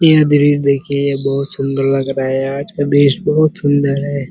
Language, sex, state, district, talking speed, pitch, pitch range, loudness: Hindi, male, Uttar Pradesh, Ghazipur, 195 wpm, 140 Hz, 135-145 Hz, -14 LUFS